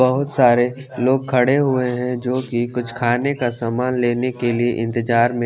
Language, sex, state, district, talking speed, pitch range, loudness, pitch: Hindi, male, Chandigarh, Chandigarh, 185 wpm, 120-130 Hz, -19 LUFS, 125 Hz